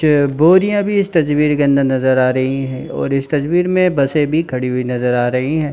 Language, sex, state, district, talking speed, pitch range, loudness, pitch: Hindi, male, Chhattisgarh, Bilaspur, 240 wpm, 130-160 Hz, -15 LUFS, 140 Hz